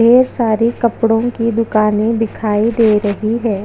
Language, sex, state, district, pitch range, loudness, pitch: Hindi, female, Chhattisgarh, Jashpur, 215-230 Hz, -14 LUFS, 225 Hz